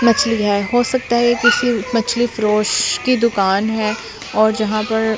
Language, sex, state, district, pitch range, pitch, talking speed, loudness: Hindi, female, Delhi, New Delhi, 215-240 Hz, 220 Hz, 175 wpm, -16 LUFS